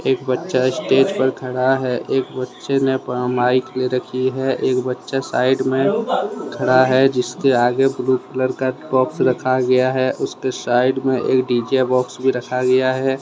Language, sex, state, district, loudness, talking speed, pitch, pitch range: Hindi, male, Jharkhand, Deoghar, -18 LUFS, 170 wpm, 130 Hz, 125-130 Hz